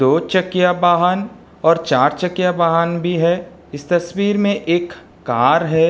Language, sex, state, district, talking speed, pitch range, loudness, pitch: Hindi, male, Uttar Pradesh, Jalaun, 150 wpm, 165-180 Hz, -16 LUFS, 175 Hz